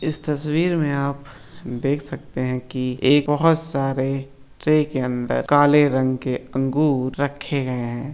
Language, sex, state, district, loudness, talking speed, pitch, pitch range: Hindi, male, Bihar, Saran, -21 LUFS, 155 wpm, 135 Hz, 130-145 Hz